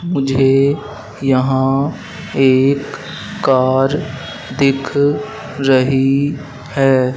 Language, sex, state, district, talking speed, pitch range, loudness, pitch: Hindi, male, Madhya Pradesh, Dhar, 60 wpm, 130-145 Hz, -15 LUFS, 135 Hz